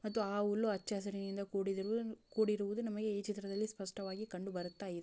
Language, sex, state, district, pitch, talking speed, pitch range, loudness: Kannada, female, Karnataka, Bijapur, 205 Hz, 145 wpm, 195-215 Hz, -39 LUFS